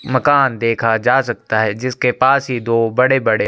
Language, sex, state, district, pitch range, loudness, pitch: Hindi, male, Chhattisgarh, Sukma, 115-130 Hz, -15 LUFS, 125 Hz